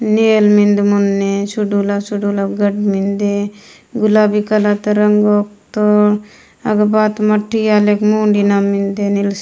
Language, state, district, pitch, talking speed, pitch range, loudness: Gondi, Chhattisgarh, Sukma, 210 Hz, 125 wpm, 205-210 Hz, -14 LUFS